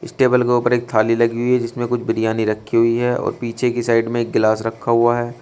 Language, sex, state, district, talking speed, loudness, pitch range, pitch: Hindi, male, Uttar Pradesh, Shamli, 275 wpm, -18 LUFS, 115-120 Hz, 120 Hz